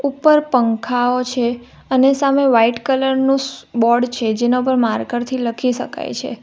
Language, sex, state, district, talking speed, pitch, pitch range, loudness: Gujarati, female, Gujarat, Valsad, 160 wpm, 250 Hz, 240-265 Hz, -17 LUFS